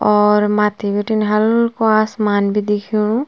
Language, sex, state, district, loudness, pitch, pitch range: Garhwali, female, Uttarakhand, Tehri Garhwal, -16 LUFS, 210 Hz, 210-220 Hz